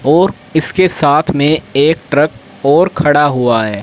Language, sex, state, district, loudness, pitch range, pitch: Hindi, male, Haryana, Rohtak, -12 LUFS, 140-160 Hz, 145 Hz